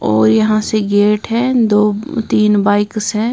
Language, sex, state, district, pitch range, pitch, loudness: Hindi, female, Punjab, Kapurthala, 205-225 Hz, 210 Hz, -14 LUFS